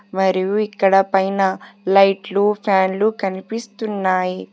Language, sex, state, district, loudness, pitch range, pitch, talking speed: Telugu, female, Telangana, Hyderabad, -18 LUFS, 190-210 Hz, 195 Hz, 80 wpm